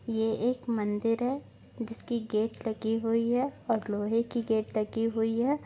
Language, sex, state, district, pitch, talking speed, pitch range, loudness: Bhojpuri, female, Bihar, Saran, 225 Hz, 170 wpm, 220-235 Hz, -30 LUFS